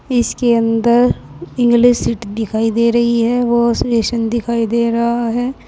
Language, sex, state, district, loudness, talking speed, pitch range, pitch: Hindi, female, Uttar Pradesh, Saharanpur, -15 LUFS, 150 wpm, 225-235 Hz, 235 Hz